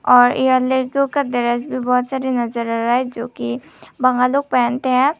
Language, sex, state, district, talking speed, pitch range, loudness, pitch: Hindi, female, Tripura, Unakoti, 205 wpm, 240-260 Hz, -18 LUFS, 250 Hz